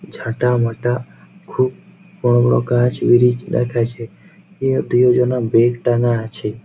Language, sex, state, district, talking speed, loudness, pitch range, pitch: Bengali, male, West Bengal, Jhargram, 125 wpm, -17 LUFS, 120-125 Hz, 120 Hz